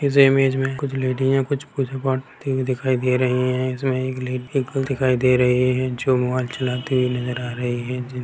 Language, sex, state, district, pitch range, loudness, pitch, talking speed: Hindi, male, Bihar, Sitamarhi, 125-135 Hz, -21 LUFS, 130 Hz, 240 wpm